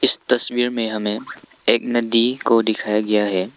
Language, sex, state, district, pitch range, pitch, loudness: Hindi, male, Arunachal Pradesh, Lower Dibang Valley, 105-120 Hz, 115 Hz, -19 LUFS